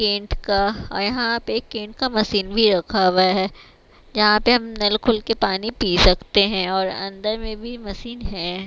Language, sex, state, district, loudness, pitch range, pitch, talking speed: Hindi, female, Bihar, West Champaran, -20 LUFS, 195-225 Hz, 210 Hz, 195 wpm